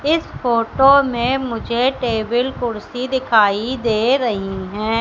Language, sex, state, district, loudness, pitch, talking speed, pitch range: Hindi, female, Madhya Pradesh, Katni, -18 LUFS, 240 Hz, 120 wpm, 220-260 Hz